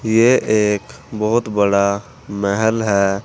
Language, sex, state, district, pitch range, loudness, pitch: Hindi, male, Uttar Pradesh, Saharanpur, 100-110 Hz, -17 LUFS, 105 Hz